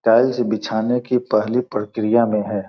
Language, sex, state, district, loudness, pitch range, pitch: Hindi, male, Bihar, Gopalganj, -19 LUFS, 105-120 Hz, 110 Hz